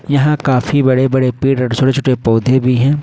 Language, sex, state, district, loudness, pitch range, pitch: Hindi, male, Jharkhand, Ranchi, -13 LUFS, 125-140 Hz, 130 Hz